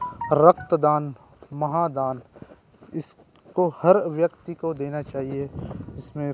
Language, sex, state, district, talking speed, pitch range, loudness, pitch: Chhattisgarhi, male, Chhattisgarh, Rajnandgaon, 85 wpm, 140-170 Hz, -23 LUFS, 150 Hz